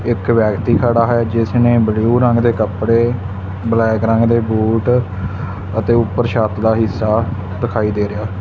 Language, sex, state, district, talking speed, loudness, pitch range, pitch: Punjabi, male, Punjab, Fazilka, 150 wpm, -15 LUFS, 105-115 Hz, 110 Hz